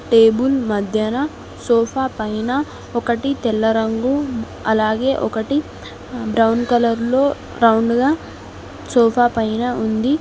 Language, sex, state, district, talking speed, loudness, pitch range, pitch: Telugu, female, Telangana, Mahabubabad, 100 wpm, -18 LUFS, 225-260 Hz, 235 Hz